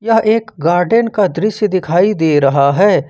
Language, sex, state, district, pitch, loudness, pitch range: Hindi, male, Jharkhand, Ranchi, 195 Hz, -13 LUFS, 165-215 Hz